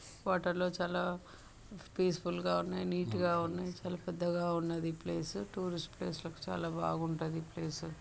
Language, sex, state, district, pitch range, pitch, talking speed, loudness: Telugu, female, Telangana, Karimnagar, 160-175 Hz, 170 Hz, 155 wpm, -37 LUFS